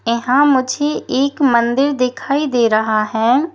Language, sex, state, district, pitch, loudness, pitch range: Hindi, female, Uttar Pradesh, Lalitpur, 255 Hz, -15 LUFS, 235-280 Hz